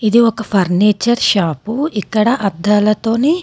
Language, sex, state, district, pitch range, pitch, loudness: Telugu, female, Telangana, Komaram Bheem, 200-235 Hz, 215 Hz, -14 LUFS